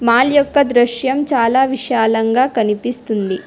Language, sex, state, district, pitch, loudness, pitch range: Telugu, female, Telangana, Hyderabad, 245 Hz, -15 LUFS, 225-265 Hz